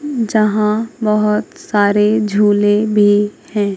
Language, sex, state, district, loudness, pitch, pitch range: Hindi, female, Madhya Pradesh, Katni, -14 LUFS, 210 Hz, 205-215 Hz